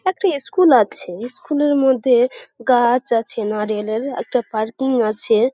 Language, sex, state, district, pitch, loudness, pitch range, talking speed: Bengali, female, West Bengal, Malda, 245 Hz, -18 LUFS, 220-270 Hz, 175 wpm